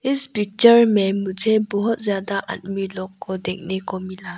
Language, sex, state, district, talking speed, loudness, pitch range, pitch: Hindi, female, Arunachal Pradesh, Lower Dibang Valley, 165 wpm, -20 LUFS, 190-215 Hz, 195 Hz